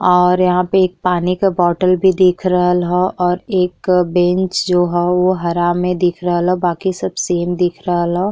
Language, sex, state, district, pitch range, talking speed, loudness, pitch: Bhojpuri, female, Uttar Pradesh, Ghazipur, 175-185 Hz, 200 wpm, -15 LUFS, 180 Hz